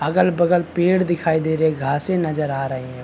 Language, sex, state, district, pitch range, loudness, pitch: Hindi, male, Chhattisgarh, Bastar, 145-175 Hz, -20 LUFS, 160 Hz